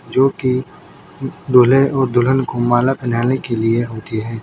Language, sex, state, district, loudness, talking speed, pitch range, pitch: Hindi, male, Uttar Pradesh, Saharanpur, -16 LUFS, 150 wpm, 120-135 Hz, 125 Hz